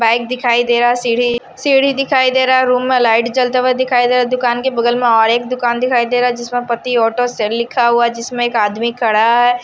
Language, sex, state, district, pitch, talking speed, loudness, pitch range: Hindi, male, Odisha, Nuapada, 245 Hz, 260 wpm, -14 LUFS, 235-250 Hz